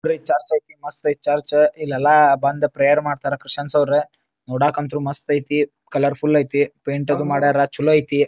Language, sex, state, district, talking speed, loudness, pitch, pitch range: Kannada, male, Karnataka, Dharwad, 160 wpm, -19 LUFS, 145 Hz, 140-150 Hz